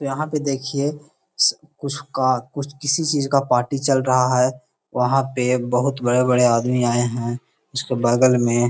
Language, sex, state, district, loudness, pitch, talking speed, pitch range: Hindi, male, Bihar, Gaya, -20 LUFS, 130 Hz, 160 wpm, 125-140 Hz